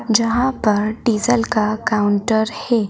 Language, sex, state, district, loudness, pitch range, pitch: Hindi, female, Madhya Pradesh, Bhopal, -18 LUFS, 210-235 Hz, 220 Hz